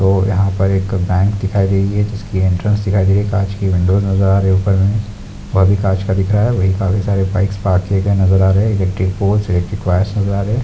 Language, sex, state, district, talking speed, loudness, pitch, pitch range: Hindi, male, Rajasthan, Nagaur, 280 wpm, -15 LUFS, 95 Hz, 95-100 Hz